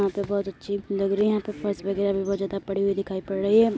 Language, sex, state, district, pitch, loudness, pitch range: Hindi, female, Uttar Pradesh, Muzaffarnagar, 200 Hz, -26 LUFS, 195-200 Hz